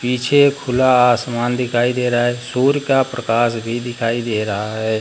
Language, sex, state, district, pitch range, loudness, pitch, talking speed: Hindi, male, Bihar, Jahanabad, 115-125 Hz, -17 LUFS, 120 Hz, 180 wpm